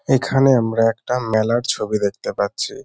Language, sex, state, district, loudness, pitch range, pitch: Bengali, male, West Bengal, North 24 Parganas, -19 LUFS, 110-130 Hz, 115 Hz